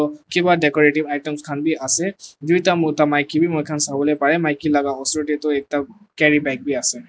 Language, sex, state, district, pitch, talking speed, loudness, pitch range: Nagamese, male, Nagaland, Dimapur, 150 Hz, 170 wpm, -19 LUFS, 145-160 Hz